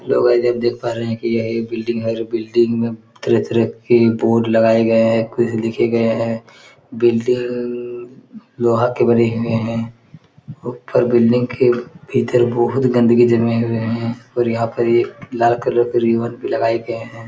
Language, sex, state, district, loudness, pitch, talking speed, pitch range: Hindi, male, Chhattisgarh, Korba, -17 LUFS, 115 Hz, 175 wpm, 115-120 Hz